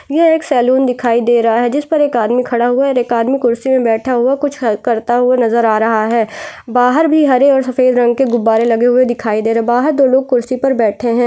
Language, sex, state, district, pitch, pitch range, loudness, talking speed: Hindi, female, Chhattisgarh, Jashpur, 245 Hz, 235-265 Hz, -13 LUFS, 250 wpm